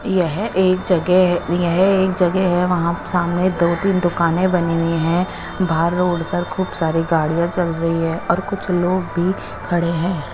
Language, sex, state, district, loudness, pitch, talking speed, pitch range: Hindi, female, Chandigarh, Chandigarh, -18 LUFS, 175 Hz, 180 wpm, 170-185 Hz